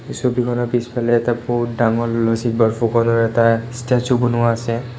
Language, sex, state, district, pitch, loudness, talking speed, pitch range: Assamese, male, Assam, Kamrup Metropolitan, 120 Hz, -18 LUFS, 145 wpm, 115-120 Hz